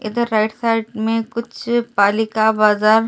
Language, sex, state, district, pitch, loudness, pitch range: Hindi, female, Delhi, New Delhi, 220 Hz, -18 LUFS, 215-235 Hz